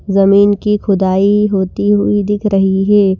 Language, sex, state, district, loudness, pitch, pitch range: Hindi, female, Himachal Pradesh, Shimla, -12 LUFS, 200 Hz, 195-205 Hz